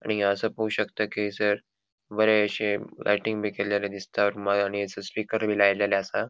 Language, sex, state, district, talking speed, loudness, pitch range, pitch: Konkani, male, Goa, North and South Goa, 180 wpm, -26 LUFS, 100-105 Hz, 100 Hz